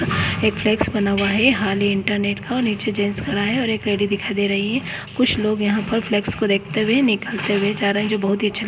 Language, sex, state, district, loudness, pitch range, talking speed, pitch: Hindi, female, West Bengal, Kolkata, -20 LUFS, 200-220 Hz, 255 wpm, 210 Hz